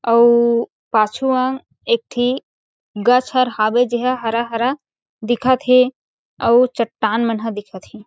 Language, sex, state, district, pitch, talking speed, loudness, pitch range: Chhattisgarhi, female, Chhattisgarh, Sarguja, 240 Hz, 140 wpm, -17 LUFS, 225-255 Hz